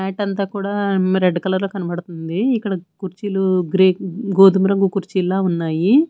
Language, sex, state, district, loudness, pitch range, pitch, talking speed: Telugu, female, Andhra Pradesh, Manyam, -18 LUFS, 185-200 Hz, 190 Hz, 135 wpm